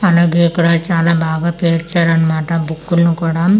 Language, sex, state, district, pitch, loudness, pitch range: Telugu, female, Andhra Pradesh, Manyam, 170 Hz, -14 LUFS, 165-170 Hz